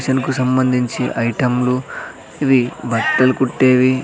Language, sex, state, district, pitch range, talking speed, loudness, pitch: Telugu, male, Andhra Pradesh, Sri Satya Sai, 125-130 Hz, 105 wpm, -16 LUFS, 130 Hz